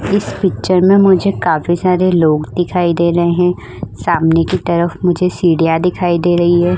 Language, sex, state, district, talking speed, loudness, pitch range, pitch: Hindi, female, Uttar Pradesh, Muzaffarnagar, 175 wpm, -13 LUFS, 170-180 Hz, 175 Hz